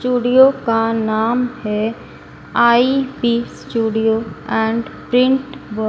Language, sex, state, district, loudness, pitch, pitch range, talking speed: Hindi, female, Madhya Pradesh, Dhar, -17 LUFS, 235 Hz, 220-250 Hz, 90 wpm